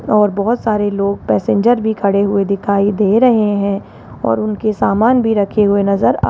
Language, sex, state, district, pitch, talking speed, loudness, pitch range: Hindi, female, Rajasthan, Jaipur, 205 Hz, 200 wpm, -14 LUFS, 200-215 Hz